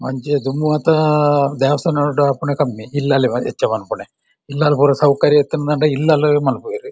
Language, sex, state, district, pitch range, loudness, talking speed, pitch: Tulu, male, Karnataka, Dakshina Kannada, 140-150 Hz, -16 LUFS, 120 wpm, 145 Hz